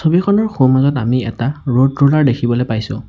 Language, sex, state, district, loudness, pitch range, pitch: Assamese, male, Assam, Sonitpur, -14 LUFS, 120-145 Hz, 130 Hz